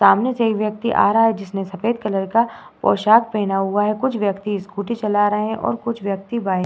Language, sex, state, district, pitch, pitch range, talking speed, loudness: Hindi, female, Uttar Pradesh, Muzaffarnagar, 210 Hz, 200-230 Hz, 235 wpm, -19 LUFS